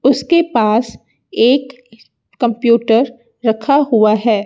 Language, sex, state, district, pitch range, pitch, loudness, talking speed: Hindi, female, Uttar Pradesh, Lucknow, 225-260 Hz, 235 Hz, -14 LUFS, 95 wpm